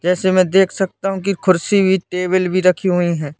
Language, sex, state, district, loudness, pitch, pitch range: Hindi, male, Madhya Pradesh, Katni, -16 LUFS, 185 Hz, 180-190 Hz